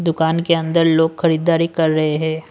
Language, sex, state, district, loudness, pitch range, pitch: Hindi, male, Punjab, Pathankot, -17 LUFS, 160-170 Hz, 160 Hz